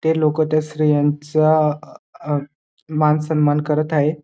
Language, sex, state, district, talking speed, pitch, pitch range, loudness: Marathi, male, Maharashtra, Dhule, 115 wpm, 150 Hz, 150-155 Hz, -18 LUFS